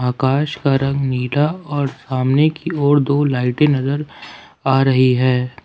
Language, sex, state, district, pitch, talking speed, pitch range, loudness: Hindi, male, Jharkhand, Ranchi, 135 Hz, 150 wpm, 130-145 Hz, -17 LUFS